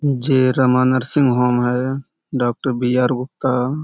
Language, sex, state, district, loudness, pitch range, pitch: Hindi, male, Uttar Pradesh, Budaun, -18 LUFS, 125-135 Hz, 130 Hz